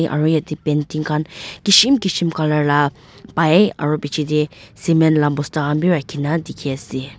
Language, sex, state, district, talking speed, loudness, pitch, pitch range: Nagamese, female, Nagaland, Dimapur, 175 wpm, -18 LUFS, 150 Hz, 145-165 Hz